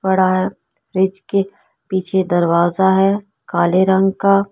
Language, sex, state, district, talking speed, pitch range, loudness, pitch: Hindi, female, Delhi, New Delhi, 120 wpm, 185-195 Hz, -16 LUFS, 190 Hz